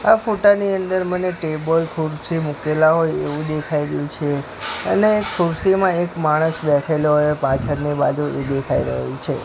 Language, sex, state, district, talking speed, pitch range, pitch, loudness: Gujarati, male, Gujarat, Gandhinagar, 160 wpm, 145-180 Hz, 155 Hz, -19 LUFS